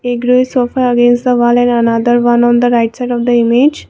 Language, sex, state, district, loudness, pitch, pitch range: English, female, Assam, Kamrup Metropolitan, -11 LUFS, 240 Hz, 240-250 Hz